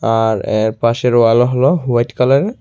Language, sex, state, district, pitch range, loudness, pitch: Bengali, male, Tripura, Unakoti, 115-130 Hz, -14 LUFS, 120 Hz